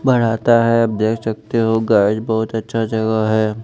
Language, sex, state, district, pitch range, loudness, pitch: Hindi, male, Chandigarh, Chandigarh, 110-115 Hz, -17 LUFS, 110 Hz